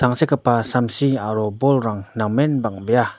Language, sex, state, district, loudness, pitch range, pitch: Garo, male, Meghalaya, North Garo Hills, -20 LUFS, 110-135 Hz, 120 Hz